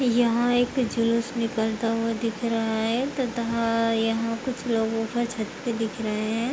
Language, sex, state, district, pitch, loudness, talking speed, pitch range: Hindi, female, Uttar Pradesh, Hamirpur, 230 Hz, -25 LUFS, 185 wpm, 225-240 Hz